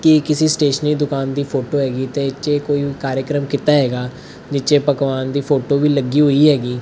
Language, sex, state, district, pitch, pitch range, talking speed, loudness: Punjabi, male, Punjab, Fazilka, 140 Hz, 135-145 Hz, 185 wpm, -17 LUFS